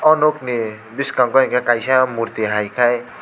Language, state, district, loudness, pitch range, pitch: Kokborok, Tripura, West Tripura, -18 LUFS, 115-130 Hz, 120 Hz